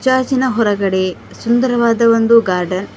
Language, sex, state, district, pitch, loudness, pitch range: Kannada, female, Karnataka, Bidar, 230 Hz, -14 LUFS, 195-245 Hz